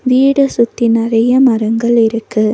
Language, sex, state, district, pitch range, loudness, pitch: Tamil, female, Tamil Nadu, Nilgiris, 225-255 Hz, -12 LUFS, 235 Hz